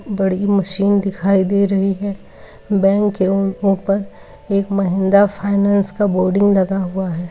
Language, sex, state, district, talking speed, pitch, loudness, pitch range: Hindi, female, Uttar Pradesh, Ghazipur, 150 wpm, 195 Hz, -17 LUFS, 190-200 Hz